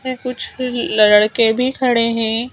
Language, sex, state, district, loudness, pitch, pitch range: Hindi, female, Madhya Pradesh, Bhopal, -16 LUFS, 240 Hz, 225-255 Hz